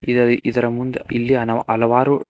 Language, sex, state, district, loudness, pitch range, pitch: Kannada, male, Karnataka, Koppal, -18 LUFS, 120-125 Hz, 120 Hz